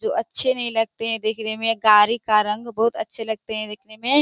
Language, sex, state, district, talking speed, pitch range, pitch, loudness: Hindi, female, Bihar, Kishanganj, 240 wpm, 215-235 Hz, 225 Hz, -21 LUFS